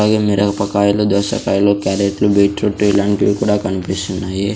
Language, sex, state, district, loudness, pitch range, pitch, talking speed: Telugu, male, Andhra Pradesh, Sri Satya Sai, -15 LUFS, 100-105 Hz, 100 Hz, 105 wpm